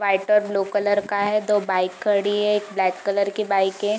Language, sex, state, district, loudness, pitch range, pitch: Hindi, female, Bihar, East Champaran, -21 LUFS, 195-210 Hz, 205 Hz